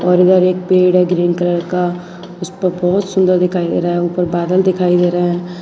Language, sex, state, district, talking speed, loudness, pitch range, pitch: Hindi, female, Gujarat, Valsad, 225 wpm, -14 LUFS, 175-185 Hz, 180 Hz